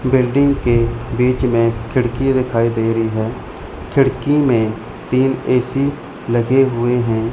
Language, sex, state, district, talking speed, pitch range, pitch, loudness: Hindi, male, Chandigarh, Chandigarh, 130 wpm, 115-130 Hz, 120 Hz, -17 LUFS